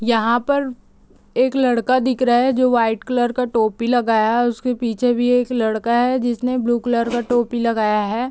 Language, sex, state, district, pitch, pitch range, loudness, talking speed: Hindi, female, Bihar, Gopalganj, 240 Hz, 230-250 Hz, -18 LUFS, 200 wpm